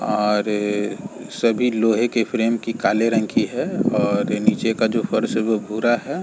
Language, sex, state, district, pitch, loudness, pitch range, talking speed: Hindi, male, Uttar Pradesh, Varanasi, 115 Hz, -20 LUFS, 105-115 Hz, 185 wpm